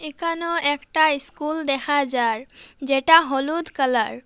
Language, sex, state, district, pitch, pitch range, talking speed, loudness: Bengali, female, Assam, Hailakandi, 290 Hz, 270-320 Hz, 125 wpm, -21 LUFS